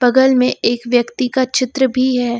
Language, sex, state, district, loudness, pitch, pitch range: Hindi, female, Uttar Pradesh, Lucknow, -15 LUFS, 250 Hz, 245-260 Hz